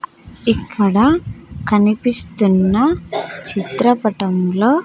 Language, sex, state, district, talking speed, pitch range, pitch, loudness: Telugu, female, Andhra Pradesh, Sri Satya Sai, 35 wpm, 195-245 Hz, 210 Hz, -16 LUFS